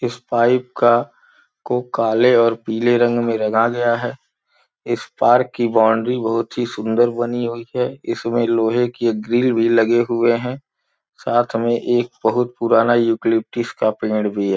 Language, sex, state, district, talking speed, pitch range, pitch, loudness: Hindi, male, Uttar Pradesh, Gorakhpur, 170 wpm, 115-120 Hz, 120 Hz, -18 LUFS